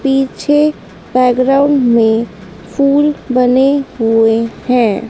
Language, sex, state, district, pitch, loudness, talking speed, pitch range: Hindi, female, Madhya Pradesh, Dhar, 255 Hz, -12 LUFS, 80 wpm, 225-275 Hz